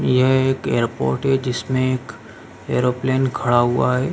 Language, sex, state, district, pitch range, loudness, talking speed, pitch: Hindi, male, Uttar Pradesh, Jalaun, 115-130 Hz, -19 LUFS, 145 wpm, 125 Hz